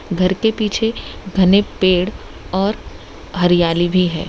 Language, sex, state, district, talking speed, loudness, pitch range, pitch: Hindi, female, Gujarat, Valsad, 125 wpm, -17 LUFS, 180-205 Hz, 185 Hz